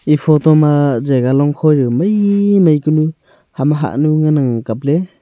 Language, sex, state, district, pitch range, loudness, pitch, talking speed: Wancho, male, Arunachal Pradesh, Longding, 140-155 Hz, -13 LUFS, 150 Hz, 150 wpm